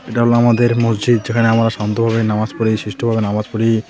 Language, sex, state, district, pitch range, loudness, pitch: Bengali, male, West Bengal, Alipurduar, 110-120 Hz, -16 LUFS, 115 Hz